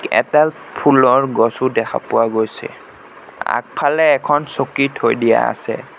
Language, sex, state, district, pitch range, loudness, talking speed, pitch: Assamese, male, Assam, Sonitpur, 125-150 Hz, -16 LUFS, 120 wpm, 135 Hz